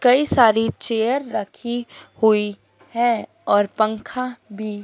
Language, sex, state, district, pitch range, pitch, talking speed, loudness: Hindi, female, Madhya Pradesh, Dhar, 215-240 Hz, 225 Hz, 110 wpm, -20 LUFS